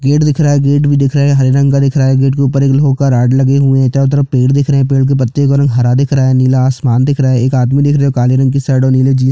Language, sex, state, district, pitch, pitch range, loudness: Hindi, male, Chhattisgarh, Jashpur, 135 Hz, 130-140 Hz, -10 LUFS